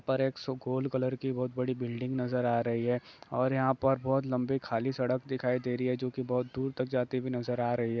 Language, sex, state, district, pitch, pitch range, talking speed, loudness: Hindi, male, Bihar, Saran, 125 Hz, 125-130 Hz, 245 wpm, -32 LUFS